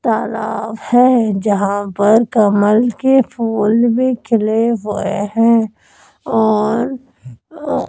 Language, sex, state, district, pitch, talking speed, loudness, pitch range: Hindi, female, Madhya Pradesh, Dhar, 220 Hz, 100 wpm, -15 LUFS, 210-235 Hz